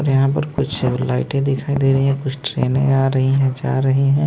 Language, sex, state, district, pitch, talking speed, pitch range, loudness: Hindi, male, Maharashtra, Mumbai Suburban, 135 Hz, 240 wpm, 135-140 Hz, -18 LUFS